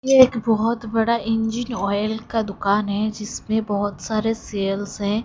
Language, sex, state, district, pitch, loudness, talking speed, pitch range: Hindi, female, Odisha, Khordha, 220 Hz, -22 LUFS, 160 wpm, 205-225 Hz